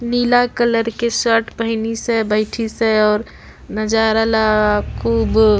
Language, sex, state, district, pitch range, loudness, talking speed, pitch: Surgujia, female, Chhattisgarh, Sarguja, 215-230 Hz, -16 LUFS, 140 wpm, 225 Hz